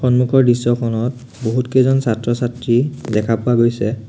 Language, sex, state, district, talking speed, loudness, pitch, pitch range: Assamese, male, Assam, Sonitpur, 115 wpm, -17 LUFS, 120 Hz, 115-125 Hz